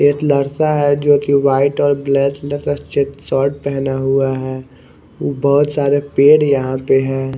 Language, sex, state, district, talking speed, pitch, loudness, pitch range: Hindi, male, Odisha, Khordha, 170 wpm, 140 Hz, -15 LUFS, 135-145 Hz